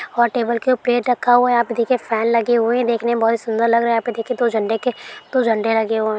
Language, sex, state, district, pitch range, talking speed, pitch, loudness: Hindi, female, Bihar, Araria, 225-245 Hz, 310 wpm, 235 Hz, -18 LUFS